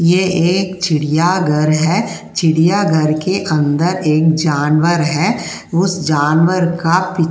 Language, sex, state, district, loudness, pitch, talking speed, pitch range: Hindi, female, Uttar Pradesh, Jyotiba Phule Nagar, -14 LUFS, 165 Hz, 115 wpm, 155-180 Hz